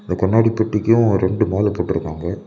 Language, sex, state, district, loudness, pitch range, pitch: Tamil, male, Tamil Nadu, Kanyakumari, -18 LUFS, 90-110 Hz, 100 Hz